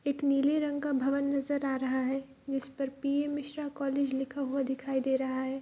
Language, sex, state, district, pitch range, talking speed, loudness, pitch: Hindi, female, Bihar, Saharsa, 265-280 Hz, 215 wpm, -32 LUFS, 275 Hz